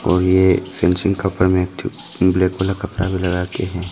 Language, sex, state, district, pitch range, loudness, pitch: Hindi, male, Arunachal Pradesh, Longding, 90-95 Hz, -18 LUFS, 95 Hz